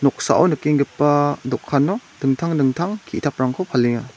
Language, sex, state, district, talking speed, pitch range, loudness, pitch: Garo, male, Meghalaya, West Garo Hills, 100 wpm, 135-160 Hz, -19 LUFS, 145 Hz